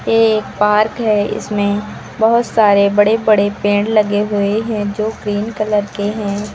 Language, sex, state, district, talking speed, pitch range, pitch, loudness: Hindi, female, Uttar Pradesh, Lucknow, 165 wpm, 205-215 Hz, 210 Hz, -15 LUFS